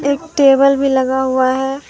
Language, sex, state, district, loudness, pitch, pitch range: Hindi, female, Jharkhand, Deoghar, -14 LUFS, 270 Hz, 265-275 Hz